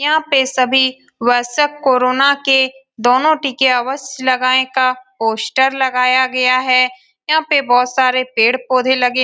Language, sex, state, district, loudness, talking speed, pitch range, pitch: Hindi, female, Bihar, Saran, -14 LUFS, 155 wpm, 255-270 Hz, 255 Hz